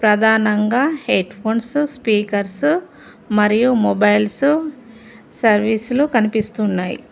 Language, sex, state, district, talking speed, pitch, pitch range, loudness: Telugu, female, Telangana, Mahabubabad, 75 wpm, 220 Hz, 210-255 Hz, -17 LUFS